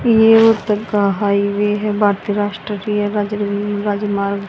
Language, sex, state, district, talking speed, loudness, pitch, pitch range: Hindi, female, Haryana, Rohtak, 105 wpm, -16 LUFS, 205 Hz, 205-210 Hz